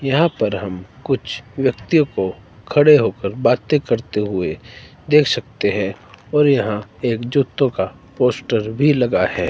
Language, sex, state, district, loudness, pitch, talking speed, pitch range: Hindi, male, Himachal Pradesh, Shimla, -18 LUFS, 120 Hz, 145 wpm, 105-140 Hz